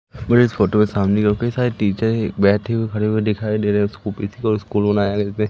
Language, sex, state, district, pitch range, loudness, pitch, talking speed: Hindi, male, Madhya Pradesh, Umaria, 105-110 Hz, -19 LUFS, 105 Hz, 220 wpm